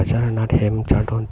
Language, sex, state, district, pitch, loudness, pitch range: Karbi, male, Assam, Karbi Anglong, 110 Hz, -19 LUFS, 105-115 Hz